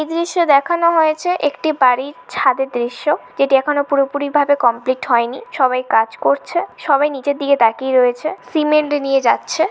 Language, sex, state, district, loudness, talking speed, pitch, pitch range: Bengali, female, West Bengal, Malda, -16 LUFS, 155 wpm, 280 Hz, 255-310 Hz